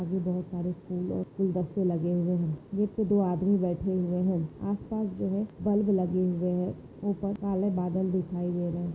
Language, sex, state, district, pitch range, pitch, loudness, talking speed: Hindi, female, Maharashtra, Nagpur, 175-195 Hz, 180 Hz, -29 LUFS, 210 wpm